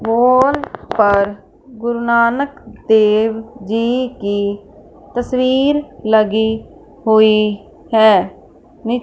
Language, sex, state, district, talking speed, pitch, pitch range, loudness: Hindi, female, Punjab, Fazilka, 75 wpm, 225 Hz, 215-250 Hz, -15 LUFS